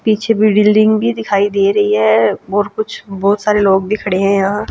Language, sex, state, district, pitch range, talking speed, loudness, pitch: Hindi, female, Chhattisgarh, Raipur, 195-215 Hz, 205 wpm, -13 LUFS, 205 Hz